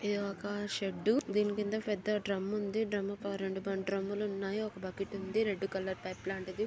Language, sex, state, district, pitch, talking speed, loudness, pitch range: Telugu, female, Andhra Pradesh, Chittoor, 200 Hz, 190 wpm, -35 LUFS, 195-210 Hz